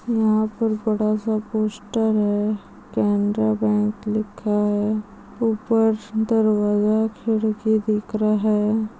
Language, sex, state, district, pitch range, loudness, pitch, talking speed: Hindi, female, Andhra Pradesh, Chittoor, 210-220 Hz, -21 LUFS, 215 Hz, 115 wpm